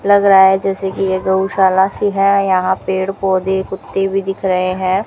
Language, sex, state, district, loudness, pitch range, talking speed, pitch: Hindi, female, Rajasthan, Bikaner, -15 LUFS, 190-195 Hz, 200 wpm, 190 Hz